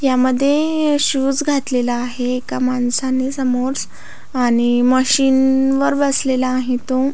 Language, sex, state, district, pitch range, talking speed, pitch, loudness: Marathi, female, Maharashtra, Aurangabad, 250-275 Hz, 100 wpm, 260 Hz, -17 LUFS